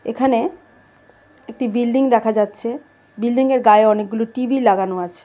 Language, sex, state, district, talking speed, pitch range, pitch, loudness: Bengali, female, Tripura, West Tripura, 125 wpm, 215-260 Hz, 235 Hz, -17 LUFS